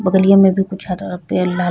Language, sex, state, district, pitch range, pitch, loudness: Bhojpuri, female, Bihar, East Champaran, 180-195 Hz, 190 Hz, -15 LUFS